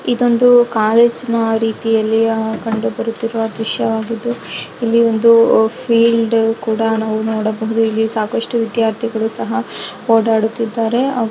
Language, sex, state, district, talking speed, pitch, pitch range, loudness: Kannada, female, Karnataka, Shimoga, 90 wpm, 225 Hz, 220-230 Hz, -15 LUFS